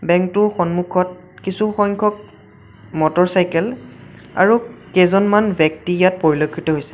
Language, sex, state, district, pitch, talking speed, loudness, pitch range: Assamese, male, Assam, Sonitpur, 180 Hz, 110 wpm, -17 LUFS, 160-200 Hz